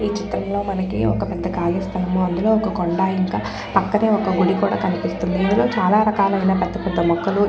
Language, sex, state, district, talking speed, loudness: Telugu, female, Andhra Pradesh, Chittoor, 170 wpm, -20 LUFS